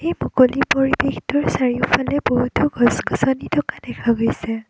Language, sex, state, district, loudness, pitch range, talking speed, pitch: Assamese, female, Assam, Kamrup Metropolitan, -19 LUFS, 235-280 Hz, 130 wpm, 255 Hz